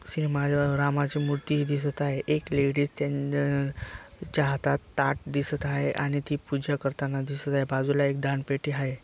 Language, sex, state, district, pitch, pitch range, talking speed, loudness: Marathi, male, Maharashtra, Dhule, 140 Hz, 140-145 Hz, 155 wpm, -28 LUFS